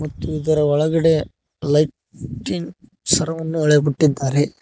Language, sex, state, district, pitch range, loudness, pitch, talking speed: Kannada, male, Karnataka, Koppal, 145-160 Hz, -19 LUFS, 155 Hz, 90 wpm